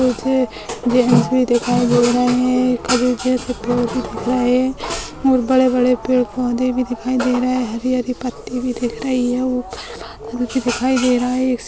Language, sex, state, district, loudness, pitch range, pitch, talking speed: Hindi, female, Maharashtra, Pune, -18 LUFS, 245-255 Hz, 250 Hz, 200 wpm